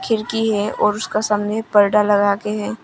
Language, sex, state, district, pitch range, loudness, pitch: Hindi, female, Arunachal Pradesh, Longding, 205-215 Hz, -18 LUFS, 210 Hz